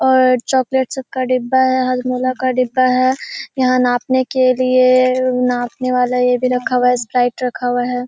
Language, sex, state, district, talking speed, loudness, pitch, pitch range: Hindi, female, Bihar, Kishanganj, 180 wpm, -16 LUFS, 255 Hz, 250-255 Hz